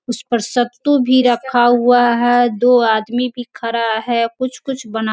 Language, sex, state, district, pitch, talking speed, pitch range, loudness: Hindi, female, Bihar, Sitamarhi, 240 Hz, 165 wpm, 230-250 Hz, -15 LUFS